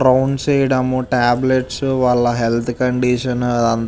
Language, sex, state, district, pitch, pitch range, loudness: Telugu, male, Andhra Pradesh, Visakhapatnam, 125 Hz, 120-130 Hz, -17 LUFS